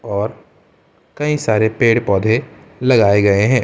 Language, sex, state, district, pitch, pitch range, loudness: Hindi, male, Uttar Pradesh, Muzaffarnagar, 115 Hz, 105-130 Hz, -15 LUFS